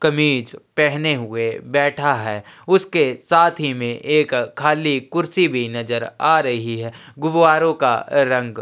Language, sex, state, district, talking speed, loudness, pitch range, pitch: Hindi, male, Chhattisgarh, Sukma, 145 wpm, -18 LUFS, 120-155 Hz, 145 Hz